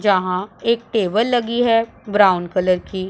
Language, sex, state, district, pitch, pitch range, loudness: Hindi, female, Punjab, Pathankot, 205 Hz, 185-230 Hz, -18 LUFS